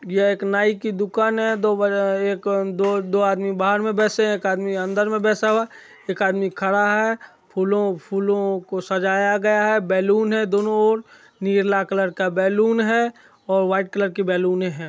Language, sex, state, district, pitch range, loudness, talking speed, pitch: Maithili, male, Bihar, Supaul, 195-215 Hz, -20 LUFS, 185 wpm, 200 Hz